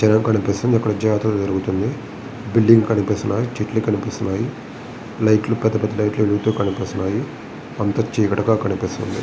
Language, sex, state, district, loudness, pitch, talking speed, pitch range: Telugu, male, Andhra Pradesh, Visakhapatnam, -19 LUFS, 110 Hz, 135 wpm, 100-115 Hz